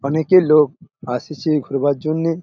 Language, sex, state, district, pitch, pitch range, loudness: Bengali, male, West Bengal, Jalpaiguri, 155 Hz, 140-165 Hz, -17 LUFS